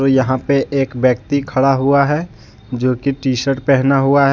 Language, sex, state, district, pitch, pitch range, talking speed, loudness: Hindi, male, Jharkhand, Deoghar, 135 Hz, 130-140 Hz, 180 wpm, -15 LUFS